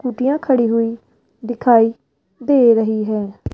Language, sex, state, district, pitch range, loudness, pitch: Hindi, female, Rajasthan, Jaipur, 220-250 Hz, -16 LUFS, 230 Hz